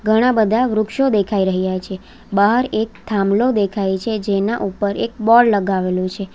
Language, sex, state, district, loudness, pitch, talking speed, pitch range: Gujarati, female, Gujarat, Valsad, -17 LUFS, 205 Hz, 160 wpm, 195-225 Hz